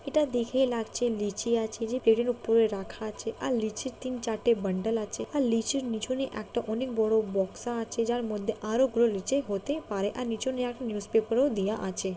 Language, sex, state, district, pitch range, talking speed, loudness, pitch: Bengali, female, West Bengal, Kolkata, 215-250 Hz, 175 wpm, -29 LUFS, 230 Hz